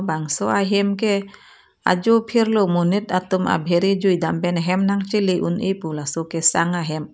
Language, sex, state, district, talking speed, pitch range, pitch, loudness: Karbi, female, Assam, Karbi Anglong, 170 wpm, 170-200 Hz, 185 Hz, -20 LUFS